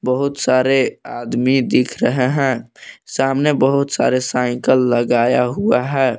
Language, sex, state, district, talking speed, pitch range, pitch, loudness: Hindi, male, Jharkhand, Palamu, 125 wpm, 125-135 Hz, 130 Hz, -17 LUFS